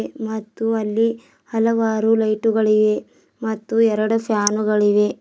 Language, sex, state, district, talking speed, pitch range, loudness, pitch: Kannada, female, Karnataka, Bidar, 80 wpm, 215-225 Hz, -19 LUFS, 220 Hz